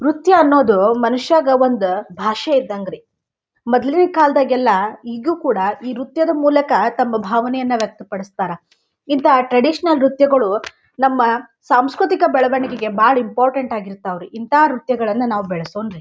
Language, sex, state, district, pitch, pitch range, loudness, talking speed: Kannada, female, Karnataka, Dharwad, 255 Hz, 220-285 Hz, -16 LUFS, 115 wpm